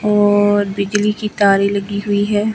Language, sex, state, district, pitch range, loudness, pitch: Hindi, male, Himachal Pradesh, Shimla, 200-210 Hz, -15 LUFS, 205 Hz